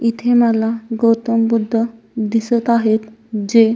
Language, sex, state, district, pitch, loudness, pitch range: Marathi, female, Maharashtra, Solapur, 230 Hz, -16 LUFS, 225-230 Hz